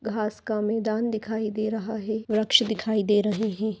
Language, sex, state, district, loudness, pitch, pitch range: Hindi, female, Chhattisgarh, Raigarh, -25 LUFS, 220 Hz, 215-220 Hz